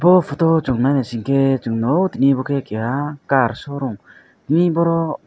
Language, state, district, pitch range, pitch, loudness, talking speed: Kokborok, Tripura, West Tripura, 130-165 Hz, 140 Hz, -18 LUFS, 180 wpm